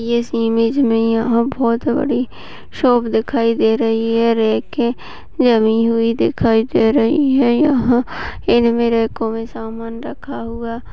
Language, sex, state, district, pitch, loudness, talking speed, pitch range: Hindi, female, Chhattisgarh, Sarguja, 230 Hz, -16 LUFS, 150 wpm, 225-245 Hz